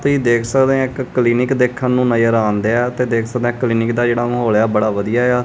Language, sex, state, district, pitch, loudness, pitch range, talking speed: Punjabi, male, Punjab, Kapurthala, 120 Hz, -16 LUFS, 115-125 Hz, 250 wpm